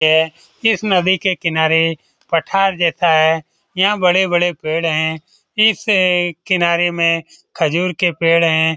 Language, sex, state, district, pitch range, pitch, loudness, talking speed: Hindi, male, Bihar, Lakhisarai, 160-185 Hz, 170 Hz, -15 LUFS, 125 wpm